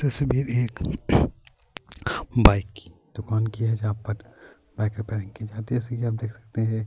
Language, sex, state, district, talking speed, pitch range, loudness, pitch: Urdu, male, Bihar, Saharsa, 175 wpm, 105-115 Hz, -26 LUFS, 110 Hz